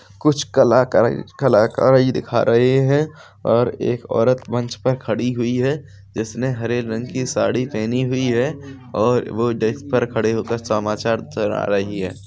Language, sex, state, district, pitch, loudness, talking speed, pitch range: Hindi, male, Bihar, Samastipur, 120 Hz, -19 LUFS, 155 wpm, 110-130 Hz